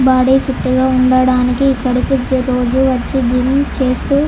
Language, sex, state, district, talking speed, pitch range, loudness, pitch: Telugu, female, Andhra Pradesh, Chittoor, 125 wpm, 255-265 Hz, -14 LUFS, 255 Hz